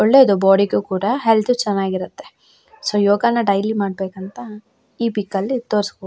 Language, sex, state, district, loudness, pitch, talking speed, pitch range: Kannada, female, Karnataka, Shimoga, -18 LUFS, 205 Hz, 140 wpm, 195-235 Hz